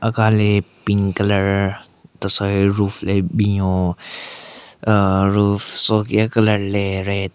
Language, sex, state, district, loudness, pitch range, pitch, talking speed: Rengma, male, Nagaland, Kohima, -18 LUFS, 95-105 Hz, 100 Hz, 120 wpm